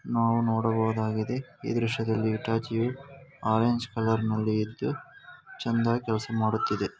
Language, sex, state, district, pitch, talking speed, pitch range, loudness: Kannada, male, Karnataka, Gulbarga, 115 Hz, 105 wpm, 110-120 Hz, -28 LUFS